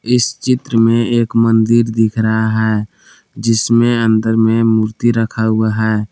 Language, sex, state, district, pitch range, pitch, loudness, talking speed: Hindi, male, Jharkhand, Palamu, 110-115 Hz, 115 Hz, -14 LUFS, 145 wpm